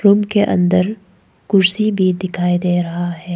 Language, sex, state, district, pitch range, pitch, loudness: Hindi, female, Arunachal Pradesh, Papum Pare, 180-200 Hz, 185 Hz, -16 LUFS